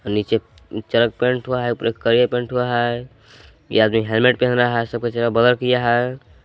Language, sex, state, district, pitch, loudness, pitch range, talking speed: Hindi, male, Jharkhand, Palamu, 120 Hz, -19 LUFS, 110-125 Hz, 195 wpm